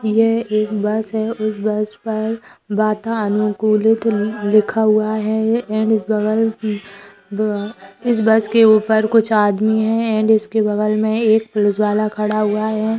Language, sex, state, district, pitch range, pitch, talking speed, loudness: Hindi, female, Bihar, Gopalganj, 210-220 Hz, 215 Hz, 150 wpm, -17 LUFS